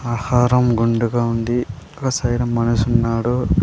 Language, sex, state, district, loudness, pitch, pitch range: Telugu, male, Andhra Pradesh, Sri Satya Sai, -18 LUFS, 120 Hz, 115-120 Hz